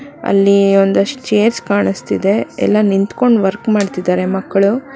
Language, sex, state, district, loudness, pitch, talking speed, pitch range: Kannada, female, Karnataka, Bangalore, -14 LUFS, 200 Hz, 110 wpm, 195-220 Hz